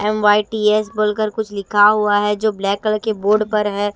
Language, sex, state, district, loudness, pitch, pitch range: Hindi, female, Himachal Pradesh, Shimla, -17 LUFS, 210 Hz, 205-215 Hz